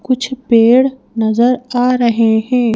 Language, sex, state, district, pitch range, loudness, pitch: Hindi, female, Madhya Pradesh, Bhopal, 230-255 Hz, -13 LUFS, 245 Hz